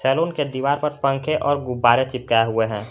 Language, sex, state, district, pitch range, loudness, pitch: Hindi, male, Jharkhand, Garhwa, 120-145 Hz, -20 LUFS, 135 Hz